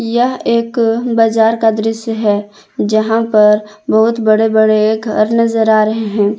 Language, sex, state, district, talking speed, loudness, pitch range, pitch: Hindi, female, Jharkhand, Palamu, 150 wpm, -13 LUFS, 215-230 Hz, 220 Hz